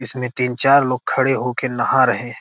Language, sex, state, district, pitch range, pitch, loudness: Hindi, male, Bihar, Gopalganj, 125-130 Hz, 125 Hz, -18 LUFS